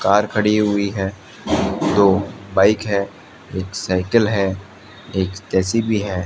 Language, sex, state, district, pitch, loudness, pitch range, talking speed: Hindi, male, Rajasthan, Bikaner, 100 Hz, -19 LUFS, 95-105 Hz, 125 wpm